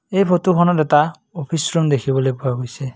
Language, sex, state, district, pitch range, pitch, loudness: Assamese, male, Assam, Kamrup Metropolitan, 135-175 Hz, 155 Hz, -18 LUFS